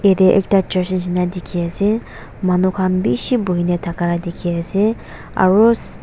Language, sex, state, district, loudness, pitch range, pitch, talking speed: Nagamese, female, Nagaland, Dimapur, -17 LUFS, 175-195 Hz, 185 Hz, 140 wpm